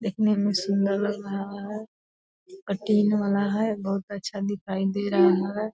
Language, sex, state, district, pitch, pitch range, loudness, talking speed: Hindi, female, Bihar, Purnia, 200 Hz, 195-210 Hz, -25 LUFS, 155 wpm